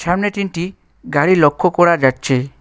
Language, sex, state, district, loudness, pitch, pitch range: Bengali, male, West Bengal, Alipurduar, -15 LUFS, 170 Hz, 140-185 Hz